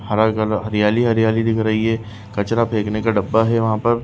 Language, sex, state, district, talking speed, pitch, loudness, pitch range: Hindi, male, Bihar, Jahanabad, 195 wpm, 110 Hz, -18 LUFS, 110-115 Hz